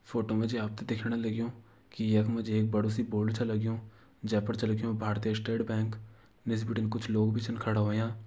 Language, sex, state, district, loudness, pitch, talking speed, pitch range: Garhwali, male, Uttarakhand, Uttarkashi, -32 LUFS, 110 Hz, 215 wpm, 110-115 Hz